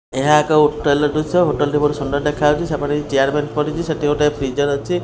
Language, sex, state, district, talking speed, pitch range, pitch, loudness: Odia, male, Odisha, Khordha, 225 wpm, 145-150 Hz, 150 Hz, -17 LUFS